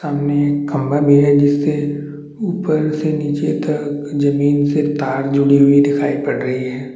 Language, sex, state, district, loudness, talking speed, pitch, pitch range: Hindi, male, Chhattisgarh, Bastar, -16 LUFS, 165 wpm, 145 Hz, 140-150 Hz